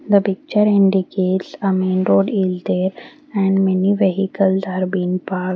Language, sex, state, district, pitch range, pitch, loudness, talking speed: English, female, Haryana, Rohtak, 185-195 Hz, 190 Hz, -18 LUFS, 150 wpm